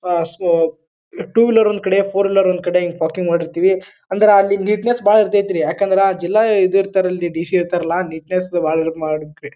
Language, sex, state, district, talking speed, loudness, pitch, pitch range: Kannada, male, Karnataka, Bijapur, 180 wpm, -16 LUFS, 185 Hz, 170-200 Hz